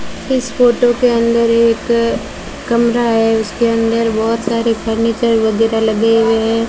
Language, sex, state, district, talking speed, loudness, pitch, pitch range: Hindi, female, Rajasthan, Bikaner, 145 wpm, -14 LUFS, 230 Hz, 225-235 Hz